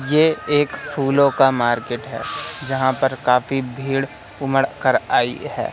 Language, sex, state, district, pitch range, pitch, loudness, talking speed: Hindi, male, Madhya Pradesh, Katni, 130-140 Hz, 135 Hz, -19 LUFS, 145 wpm